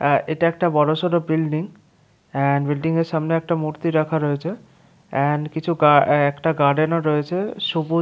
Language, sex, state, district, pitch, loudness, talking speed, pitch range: Bengali, male, West Bengal, Paschim Medinipur, 160 Hz, -20 LUFS, 155 wpm, 150-170 Hz